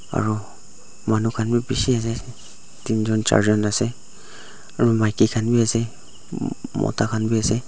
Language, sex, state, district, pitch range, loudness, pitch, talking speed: Nagamese, male, Nagaland, Dimapur, 110-115 Hz, -22 LUFS, 110 Hz, 140 wpm